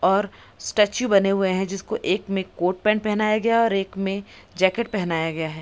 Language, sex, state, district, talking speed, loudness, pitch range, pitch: Hindi, female, Bihar, Madhepura, 215 wpm, -22 LUFS, 190-215 Hz, 195 Hz